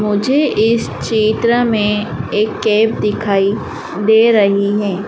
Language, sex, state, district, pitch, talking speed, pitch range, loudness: Hindi, female, Madhya Pradesh, Dhar, 215 Hz, 120 wpm, 205-225 Hz, -14 LUFS